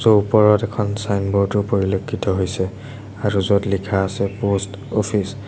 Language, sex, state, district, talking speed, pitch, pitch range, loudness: Assamese, male, Assam, Sonitpur, 140 wpm, 100 Hz, 100-105 Hz, -19 LUFS